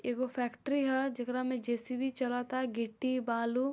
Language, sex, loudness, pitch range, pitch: Bhojpuri, female, -34 LUFS, 245-255 Hz, 255 Hz